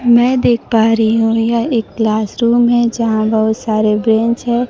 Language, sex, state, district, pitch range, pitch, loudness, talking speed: Hindi, female, Bihar, Kaimur, 220-240 Hz, 225 Hz, -13 LUFS, 190 wpm